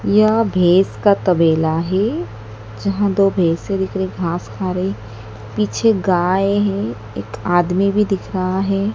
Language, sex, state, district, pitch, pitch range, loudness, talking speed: Hindi, female, Madhya Pradesh, Dhar, 185 Hz, 160-195 Hz, -17 LUFS, 145 wpm